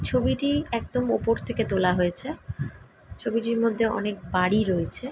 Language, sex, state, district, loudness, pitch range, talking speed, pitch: Bengali, female, West Bengal, Jalpaiguri, -26 LUFS, 190-235 Hz, 130 wpm, 225 Hz